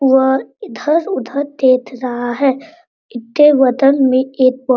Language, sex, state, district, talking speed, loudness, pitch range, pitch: Hindi, female, Bihar, Araria, 125 wpm, -14 LUFS, 255-280 Hz, 265 Hz